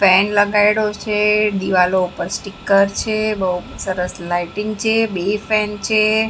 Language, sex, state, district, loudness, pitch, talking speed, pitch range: Gujarati, female, Maharashtra, Mumbai Suburban, -17 LUFS, 205 Hz, 135 wpm, 190-215 Hz